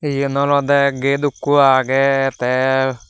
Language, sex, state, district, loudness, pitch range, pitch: Chakma, male, Tripura, Dhalai, -16 LUFS, 130-140 Hz, 135 Hz